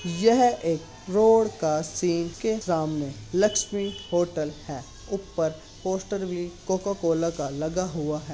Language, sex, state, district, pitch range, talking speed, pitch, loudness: Hindi, male, Bihar, Saharsa, 155-200 Hz, 130 wpm, 175 Hz, -26 LUFS